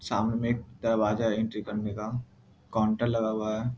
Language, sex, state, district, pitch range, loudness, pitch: Hindi, male, Bihar, Muzaffarpur, 110-115 Hz, -29 LUFS, 110 Hz